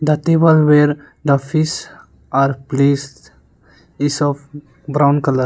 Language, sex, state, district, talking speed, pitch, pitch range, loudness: English, male, Arunachal Pradesh, Lower Dibang Valley, 120 wpm, 145 Hz, 135-150 Hz, -16 LUFS